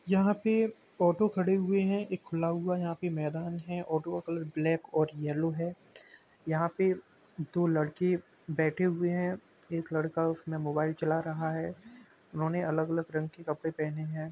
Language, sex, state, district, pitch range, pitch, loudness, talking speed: Hindi, male, Uttar Pradesh, Jalaun, 160-180 Hz, 165 Hz, -32 LUFS, 170 wpm